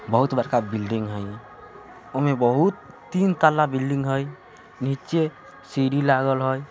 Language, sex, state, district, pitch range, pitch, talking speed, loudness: Hindi, male, Bihar, Vaishali, 125-145 Hz, 135 Hz, 125 wpm, -23 LUFS